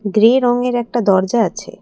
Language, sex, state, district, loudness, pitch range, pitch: Bengali, female, Assam, Kamrup Metropolitan, -15 LUFS, 205-245 Hz, 230 Hz